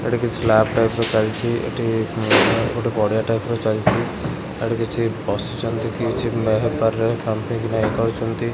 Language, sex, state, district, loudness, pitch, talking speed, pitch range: Odia, male, Odisha, Khordha, -20 LUFS, 115 Hz, 145 wpm, 110-115 Hz